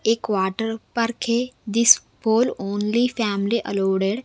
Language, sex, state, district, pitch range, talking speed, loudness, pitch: Hindi, female, Punjab, Kapurthala, 200-235 Hz, 140 wpm, -21 LUFS, 225 Hz